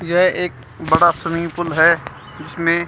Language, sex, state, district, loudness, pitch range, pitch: Hindi, female, Haryana, Charkhi Dadri, -17 LUFS, 155-175 Hz, 170 Hz